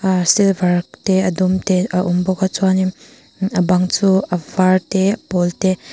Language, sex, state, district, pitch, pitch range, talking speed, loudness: Mizo, female, Mizoram, Aizawl, 185 Hz, 180-190 Hz, 200 wpm, -17 LUFS